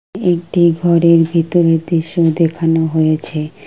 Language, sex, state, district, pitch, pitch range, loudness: Bengali, female, West Bengal, Kolkata, 165 Hz, 160-170 Hz, -14 LUFS